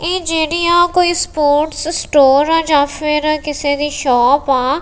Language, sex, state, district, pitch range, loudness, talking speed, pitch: Punjabi, female, Punjab, Kapurthala, 285-325 Hz, -14 LUFS, 150 wpm, 300 Hz